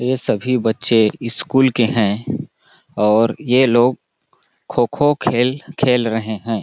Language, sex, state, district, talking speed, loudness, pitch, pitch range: Hindi, male, Chhattisgarh, Balrampur, 125 wpm, -17 LUFS, 120 Hz, 110-130 Hz